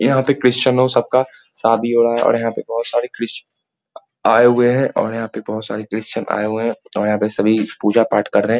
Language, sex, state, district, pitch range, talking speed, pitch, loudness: Hindi, male, Bihar, Muzaffarpur, 110-120 Hz, 245 wpm, 115 Hz, -17 LUFS